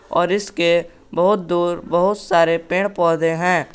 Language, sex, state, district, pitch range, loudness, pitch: Hindi, male, Jharkhand, Garhwa, 170-185 Hz, -18 LUFS, 175 Hz